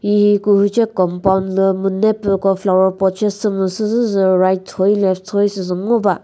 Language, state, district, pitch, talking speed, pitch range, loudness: Chakhesang, Nagaland, Dimapur, 195 Hz, 165 wpm, 190-205 Hz, -16 LUFS